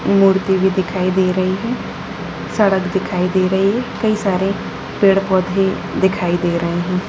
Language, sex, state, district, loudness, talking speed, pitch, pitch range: Hindi, female, Bihar, Jahanabad, -17 LUFS, 150 wpm, 190 Hz, 185-195 Hz